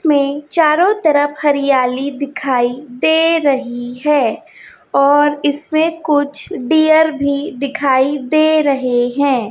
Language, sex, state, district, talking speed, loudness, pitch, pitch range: Hindi, female, Chhattisgarh, Raipur, 105 wpm, -15 LUFS, 285 Hz, 270-310 Hz